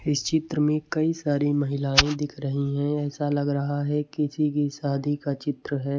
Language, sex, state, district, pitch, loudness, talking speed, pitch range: Hindi, male, Chhattisgarh, Raipur, 145 Hz, -25 LUFS, 190 wpm, 140-150 Hz